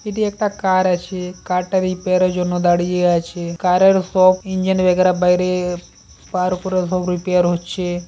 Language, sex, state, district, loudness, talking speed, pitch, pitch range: Bengali, female, West Bengal, Paschim Medinipur, -17 LUFS, 155 wpm, 180 Hz, 180-185 Hz